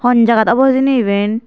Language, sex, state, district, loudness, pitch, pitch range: Chakma, female, Tripura, Dhalai, -12 LUFS, 235 Hz, 220-260 Hz